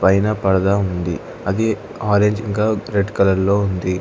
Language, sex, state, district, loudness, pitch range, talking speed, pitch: Telugu, male, Telangana, Hyderabad, -18 LUFS, 95-105 Hz, 150 wpm, 100 Hz